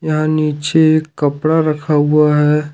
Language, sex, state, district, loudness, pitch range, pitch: Hindi, male, Jharkhand, Ranchi, -14 LUFS, 150-155 Hz, 150 Hz